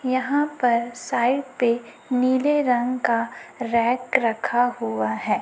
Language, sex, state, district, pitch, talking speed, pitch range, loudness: Hindi, female, Chhattisgarh, Raipur, 245 Hz, 120 wpm, 235-260 Hz, -23 LUFS